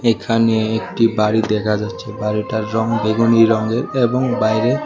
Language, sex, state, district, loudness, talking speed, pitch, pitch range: Bengali, male, Tripura, West Tripura, -17 LUFS, 135 wpm, 110 Hz, 110-115 Hz